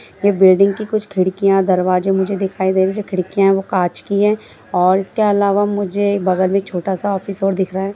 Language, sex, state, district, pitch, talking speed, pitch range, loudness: Hindi, female, Bihar, Darbhanga, 195 Hz, 235 wpm, 190-200 Hz, -16 LUFS